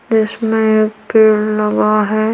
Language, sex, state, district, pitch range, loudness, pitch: Hindi, female, Chhattisgarh, Korba, 215-220 Hz, -14 LUFS, 215 Hz